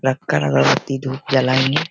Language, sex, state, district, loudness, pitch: Hindi, male, Bihar, Begusarai, -18 LUFS, 130 Hz